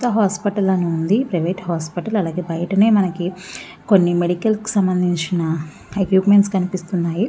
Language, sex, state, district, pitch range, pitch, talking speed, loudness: Telugu, female, Andhra Pradesh, Visakhapatnam, 175-205 Hz, 185 Hz, 125 wpm, -19 LUFS